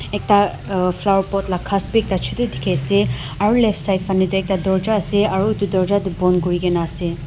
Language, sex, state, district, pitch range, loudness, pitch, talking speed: Nagamese, female, Nagaland, Dimapur, 180-200 Hz, -19 LUFS, 190 Hz, 230 wpm